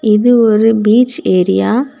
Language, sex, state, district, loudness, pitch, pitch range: Tamil, female, Tamil Nadu, Kanyakumari, -11 LUFS, 225 Hz, 210-245 Hz